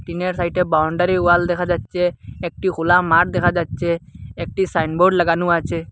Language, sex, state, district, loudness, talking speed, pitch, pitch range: Bengali, male, Assam, Hailakandi, -18 LUFS, 150 wpm, 175 Hz, 165-180 Hz